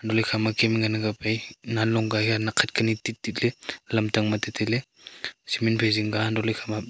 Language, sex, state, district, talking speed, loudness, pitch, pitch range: Wancho, male, Arunachal Pradesh, Longding, 200 wpm, -25 LUFS, 110 Hz, 110-115 Hz